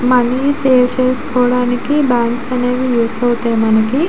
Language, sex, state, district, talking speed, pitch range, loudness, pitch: Telugu, female, Andhra Pradesh, Visakhapatnam, 115 wpm, 240-255 Hz, -14 LUFS, 250 Hz